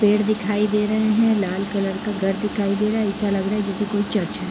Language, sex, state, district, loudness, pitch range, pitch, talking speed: Hindi, female, Bihar, East Champaran, -21 LUFS, 200-210 Hz, 210 Hz, 305 wpm